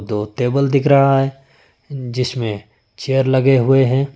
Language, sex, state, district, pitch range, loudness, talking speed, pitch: Hindi, male, Arunachal Pradesh, Lower Dibang Valley, 115-135 Hz, -16 LUFS, 130 wpm, 130 Hz